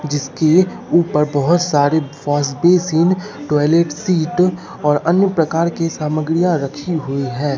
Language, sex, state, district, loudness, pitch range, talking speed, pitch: Hindi, male, Bihar, Katihar, -16 LUFS, 145-175 Hz, 110 wpm, 160 Hz